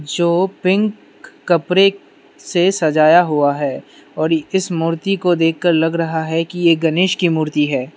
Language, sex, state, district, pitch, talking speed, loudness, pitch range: Hindi, male, Manipur, Imphal West, 165 Hz, 160 wpm, -16 LUFS, 160-180 Hz